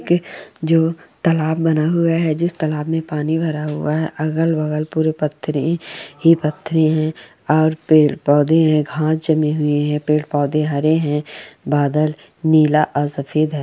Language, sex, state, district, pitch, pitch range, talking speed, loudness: Hindi, female, Chhattisgarh, Raigarh, 155 Hz, 150-160 Hz, 170 wpm, -18 LUFS